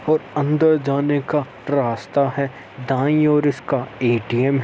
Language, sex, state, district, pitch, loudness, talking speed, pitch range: Hindi, male, Uttar Pradesh, Etah, 140 Hz, -20 LUFS, 140 wpm, 130-150 Hz